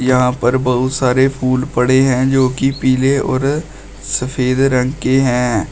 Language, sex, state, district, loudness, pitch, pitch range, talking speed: Hindi, male, Uttar Pradesh, Shamli, -15 LUFS, 130 Hz, 125-135 Hz, 145 wpm